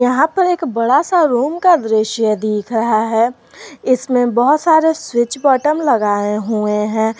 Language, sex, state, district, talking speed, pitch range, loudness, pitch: Hindi, female, Jharkhand, Garhwa, 160 wpm, 220-300 Hz, -15 LUFS, 245 Hz